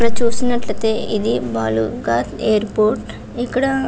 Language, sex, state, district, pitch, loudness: Telugu, female, Andhra Pradesh, Visakhapatnam, 220 Hz, -19 LUFS